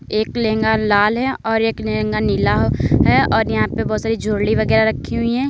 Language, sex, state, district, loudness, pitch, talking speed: Hindi, female, Uttar Pradesh, Lalitpur, -17 LUFS, 215 Hz, 220 wpm